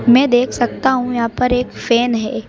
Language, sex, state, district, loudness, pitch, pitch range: Hindi, male, Madhya Pradesh, Bhopal, -16 LUFS, 245 Hz, 235-250 Hz